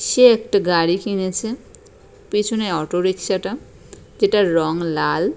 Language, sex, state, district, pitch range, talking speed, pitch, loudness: Bengali, female, West Bengal, Purulia, 175-220 Hz, 110 wpm, 190 Hz, -19 LUFS